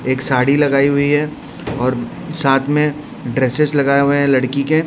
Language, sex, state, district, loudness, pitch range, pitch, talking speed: Hindi, male, Odisha, Khordha, -16 LUFS, 130-150 Hz, 140 Hz, 160 wpm